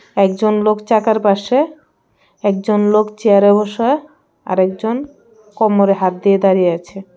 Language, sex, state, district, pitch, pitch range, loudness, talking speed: Bengali, female, Tripura, West Tripura, 210 Hz, 195-220 Hz, -15 LUFS, 125 wpm